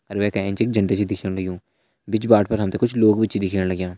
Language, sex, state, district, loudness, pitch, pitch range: Hindi, male, Uttarakhand, Uttarkashi, -21 LUFS, 100 Hz, 95-110 Hz